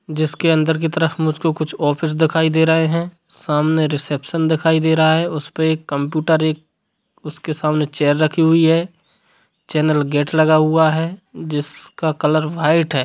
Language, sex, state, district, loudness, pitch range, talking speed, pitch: Hindi, male, Bihar, Sitamarhi, -17 LUFS, 150-160 Hz, 165 wpm, 160 Hz